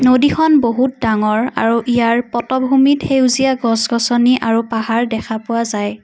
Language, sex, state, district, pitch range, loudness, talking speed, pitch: Assamese, female, Assam, Kamrup Metropolitan, 225-260 Hz, -15 LUFS, 130 wpm, 235 Hz